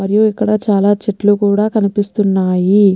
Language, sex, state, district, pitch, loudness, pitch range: Telugu, female, Telangana, Nalgonda, 205 Hz, -14 LUFS, 200-210 Hz